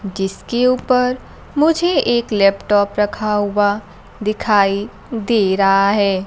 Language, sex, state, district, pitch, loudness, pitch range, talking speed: Hindi, female, Bihar, Kaimur, 210 Hz, -17 LUFS, 200-240 Hz, 105 wpm